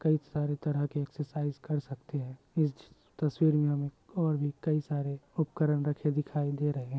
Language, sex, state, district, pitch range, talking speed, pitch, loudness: Hindi, male, Bihar, Samastipur, 145-155 Hz, 190 wpm, 150 Hz, -32 LUFS